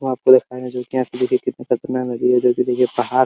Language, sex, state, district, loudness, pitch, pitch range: Hindi, male, Uttar Pradesh, Hamirpur, -18 LUFS, 125 Hz, 125-130 Hz